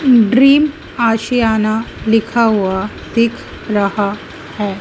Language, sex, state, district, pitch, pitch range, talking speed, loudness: Hindi, female, Madhya Pradesh, Dhar, 225 Hz, 205-235 Hz, 85 wpm, -14 LUFS